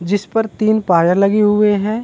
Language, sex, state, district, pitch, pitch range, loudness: Hindi, male, Uttarakhand, Uttarkashi, 210 Hz, 195-215 Hz, -14 LUFS